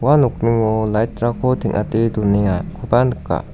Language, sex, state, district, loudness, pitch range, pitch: Garo, male, Meghalaya, West Garo Hills, -18 LUFS, 105-120 Hz, 115 Hz